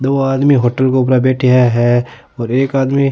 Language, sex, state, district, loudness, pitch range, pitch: Rajasthani, male, Rajasthan, Nagaur, -13 LUFS, 125-135 Hz, 130 Hz